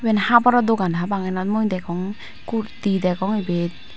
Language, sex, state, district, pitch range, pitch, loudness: Chakma, female, Tripura, Dhalai, 185-220 Hz, 200 Hz, -21 LUFS